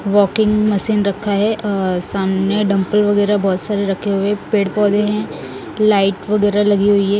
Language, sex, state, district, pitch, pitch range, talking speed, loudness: Hindi, male, Odisha, Nuapada, 205 Hz, 200-210 Hz, 165 wpm, -16 LUFS